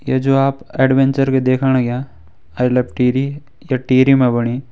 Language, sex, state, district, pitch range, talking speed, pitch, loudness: Hindi, male, Uttarakhand, Tehri Garhwal, 125-135 Hz, 180 wpm, 130 Hz, -16 LUFS